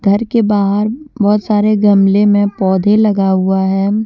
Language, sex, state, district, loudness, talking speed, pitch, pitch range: Hindi, female, Jharkhand, Deoghar, -12 LUFS, 160 wpm, 205 Hz, 195-215 Hz